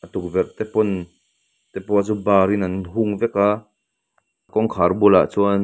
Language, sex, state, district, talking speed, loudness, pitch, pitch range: Mizo, male, Mizoram, Aizawl, 170 wpm, -19 LUFS, 100 Hz, 95-105 Hz